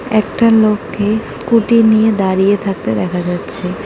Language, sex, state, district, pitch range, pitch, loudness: Bengali, female, West Bengal, Cooch Behar, 195-225 Hz, 215 Hz, -14 LUFS